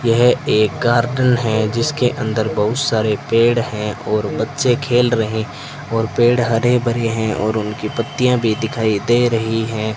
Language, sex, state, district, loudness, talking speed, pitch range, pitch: Hindi, male, Rajasthan, Bikaner, -17 LUFS, 165 wpm, 110-120 Hz, 115 Hz